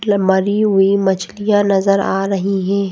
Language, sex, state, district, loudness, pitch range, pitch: Hindi, female, Madhya Pradesh, Bhopal, -15 LUFS, 195-205 Hz, 195 Hz